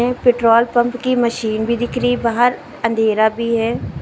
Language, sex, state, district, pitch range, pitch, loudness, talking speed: Hindi, female, Uttar Pradesh, Lucknow, 230-245 Hz, 235 Hz, -17 LUFS, 180 wpm